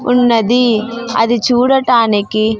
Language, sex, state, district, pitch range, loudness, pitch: Telugu, female, Andhra Pradesh, Sri Satya Sai, 220-245 Hz, -12 LUFS, 235 Hz